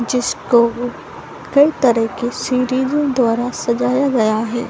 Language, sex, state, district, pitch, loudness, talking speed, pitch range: Hindi, female, Bihar, Saran, 245 Hz, -17 LUFS, 130 wpm, 235-260 Hz